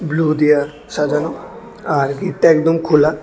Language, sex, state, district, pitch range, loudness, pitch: Bengali, male, Tripura, West Tripura, 150-160 Hz, -16 LUFS, 150 Hz